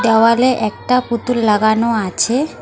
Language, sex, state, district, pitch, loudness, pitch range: Bengali, female, West Bengal, Alipurduar, 230 Hz, -15 LUFS, 220-250 Hz